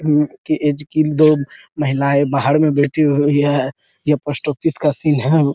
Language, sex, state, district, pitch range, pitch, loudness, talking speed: Hindi, male, Bihar, Araria, 145-155 Hz, 150 Hz, -16 LUFS, 185 wpm